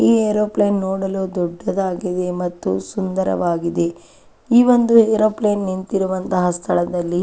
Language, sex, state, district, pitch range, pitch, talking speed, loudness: Kannada, female, Karnataka, Chamarajanagar, 175-205 Hz, 190 Hz, 110 wpm, -18 LUFS